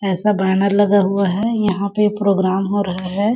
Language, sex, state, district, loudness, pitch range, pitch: Hindi, female, Chhattisgarh, Sarguja, -17 LUFS, 190-205 Hz, 200 Hz